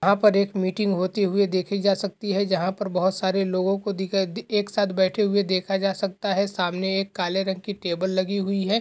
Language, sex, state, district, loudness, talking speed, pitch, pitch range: Hindi, male, Uttar Pradesh, Jalaun, -24 LUFS, 240 wpm, 195 Hz, 190-200 Hz